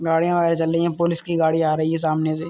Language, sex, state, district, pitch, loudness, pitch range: Hindi, male, Uttar Pradesh, Muzaffarnagar, 165 Hz, -20 LUFS, 160-170 Hz